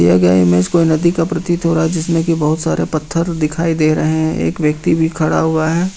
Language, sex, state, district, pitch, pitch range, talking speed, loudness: Hindi, male, Jharkhand, Ranchi, 160 Hz, 155-165 Hz, 240 wpm, -15 LUFS